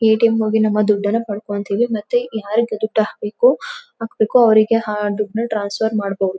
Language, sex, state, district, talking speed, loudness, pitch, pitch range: Kannada, female, Karnataka, Mysore, 150 wpm, -18 LUFS, 220 Hz, 210-230 Hz